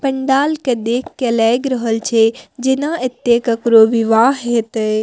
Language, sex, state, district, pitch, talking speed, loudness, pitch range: Maithili, female, Bihar, Madhepura, 235 Hz, 145 wpm, -15 LUFS, 225-265 Hz